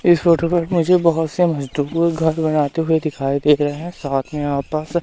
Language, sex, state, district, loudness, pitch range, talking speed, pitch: Hindi, male, Madhya Pradesh, Katni, -18 LUFS, 145-170 Hz, 190 wpm, 160 Hz